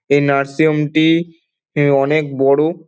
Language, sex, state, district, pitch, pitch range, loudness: Bengali, male, West Bengal, Dakshin Dinajpur, 150 Hz, 140-160 Hz, -15 LUFS